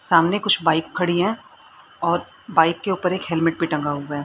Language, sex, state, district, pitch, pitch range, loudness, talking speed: Hindi, female, Haryana, Rohtak, 165 Hz, 160-180 Hz, -21 LUFS, 210 wpm